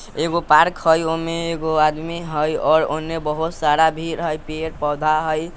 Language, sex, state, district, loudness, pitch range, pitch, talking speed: Bajjika, male, Bihar, Vaishali, -19 LUFS, 155-165 Hz, 160 Hz, 170 wpm